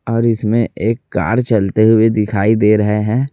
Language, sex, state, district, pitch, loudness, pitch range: Hindi, male, Chhattisgarh, Raipur, 110 Hz, -14 LUFS, 105-115 Hz